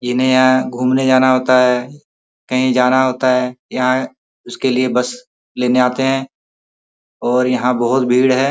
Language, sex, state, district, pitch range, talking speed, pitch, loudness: Hindi, male, Uttar Pradesh, Muzaffarnagar, 125-130 Hz, 155 wpm, 130 Hz, -15 LUFS